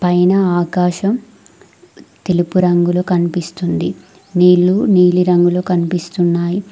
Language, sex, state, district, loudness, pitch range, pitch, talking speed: Telugu, female, Telangana, Mahabubabad, -14 LUFS, 175-185 Hz, 180 Hz, 80 wpm